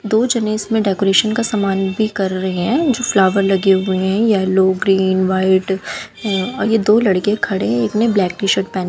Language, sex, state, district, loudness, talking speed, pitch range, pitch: Hindi, female, Haryana, Jhajjar, -16 LUFS, 210 wpm, 190-215 Hz, 195 Hz